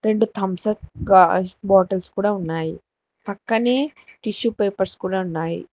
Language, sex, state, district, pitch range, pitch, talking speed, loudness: Telugu, female, Telangana, Hyderabad, 185-215 Hz, 195 Hz, 115 wpm, -20 LUFS